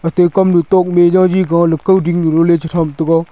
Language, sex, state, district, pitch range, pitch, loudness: Wancho, male, Arunachal Pradesh, Longding, 165-185 Hz, 170 Hz, -12 LUFS